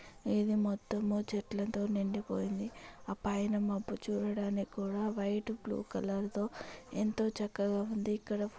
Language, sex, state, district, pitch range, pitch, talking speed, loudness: Telugu, female, Andhra Pradesh, Chittoor, 200-210 Hz, 205 Hz, 125 wpm, -36 LUFS